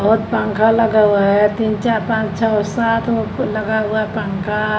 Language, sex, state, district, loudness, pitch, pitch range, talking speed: Hindi, female, Bihar, Patna, -16 LUFS, 215 Hz, 210-225 Hz, 185 wpm